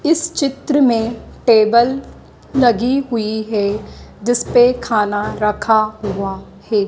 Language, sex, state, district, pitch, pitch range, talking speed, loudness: Hindi, female, Madhya Pradesh, Dhar, 230 Hz, 210-250 Hz, 105 wpm, -16 LUFS